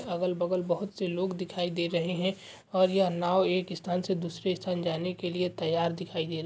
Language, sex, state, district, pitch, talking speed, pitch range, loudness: Hindi, male, Chhattisgarh, Sukma, 180 Hz, 230 wpm, 175-185 Hz, -30 LUFS